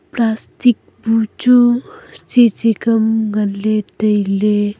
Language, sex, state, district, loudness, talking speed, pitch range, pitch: Wancho, female, Arunachal Pradesh, Longding, -15 LUFS, 125 wpm, 210-240 Hz, 220 Hz